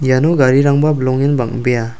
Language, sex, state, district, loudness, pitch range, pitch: Garo, male, Meghalaya, South Garo Hills, -14 LUFS, 125-140 Hz, 130 Hz